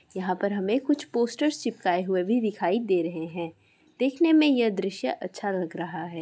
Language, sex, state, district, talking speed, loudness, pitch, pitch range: Hindi, female, Bihar, Purnia, 195 wpm, -26 LUFS, 200 Hz, 180-245 Hz